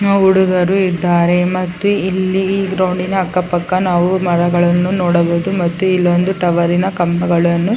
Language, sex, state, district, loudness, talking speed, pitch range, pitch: Kannada, female, Karnataka, Chamarajanagar, -14 LUFS, 115 wpm, 175-190 Hz, 180 Hz